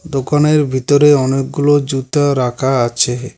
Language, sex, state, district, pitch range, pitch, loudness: Bengali, male, West Bengal, Cooch Behar, 130-145 Hz, 135 Hz, -14 LUFS